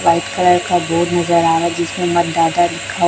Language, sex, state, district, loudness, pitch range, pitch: Hindi, male, Chhattisgarh, Raipur, -15 LUFS, 170-175 Hz, 170 Hz